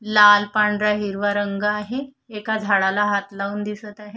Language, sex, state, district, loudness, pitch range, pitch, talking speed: Marathi, female, Maharashtra, Solapur, -20 LUFS, 205-210 Hz, 210 Hz, 160 wpm